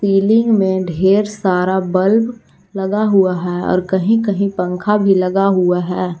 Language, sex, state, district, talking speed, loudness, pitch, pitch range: Hindi, female, Jharkhand, Garhwa, 155 wpm, -15 LUFS, 195 Hz, 185-205 Hz